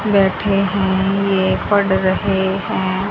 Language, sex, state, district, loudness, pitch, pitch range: Hindi, female, Haryana, Rohtak, -17 LUFS, 195 Hz, 190-200 Hz